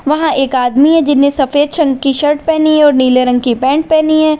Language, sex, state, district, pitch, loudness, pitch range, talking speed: Hindi, female, Uttar Pradesh, Lalitpur, 290 Hz, -11 LUFS, 270-310 Hz, 245 wpm